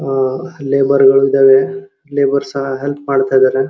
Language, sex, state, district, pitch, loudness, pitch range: Kannada, male, Karnataka, Dharwad, 135 Hz, -13 LUFS, 135-140 Hz